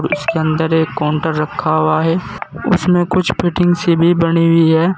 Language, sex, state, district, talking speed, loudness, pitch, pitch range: Hindi, male, Uttar Pradesh, Saharanpur, 195 wpm, -15 LUFS, 165 Hz, 160-175 Hz